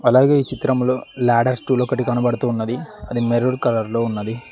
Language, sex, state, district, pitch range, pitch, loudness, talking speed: Telugu, male, Telangana, Mahabubabad, 120-130 Hz, 125 Hz, -19 LUFS, 160 wpm